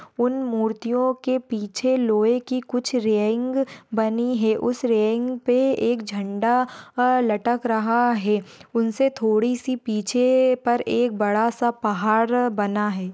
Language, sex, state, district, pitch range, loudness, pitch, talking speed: Hindi, female, Maharashtra, Aurangabad, 220-250 Hz, -22 LUFS, 235 Hz, 130 wpm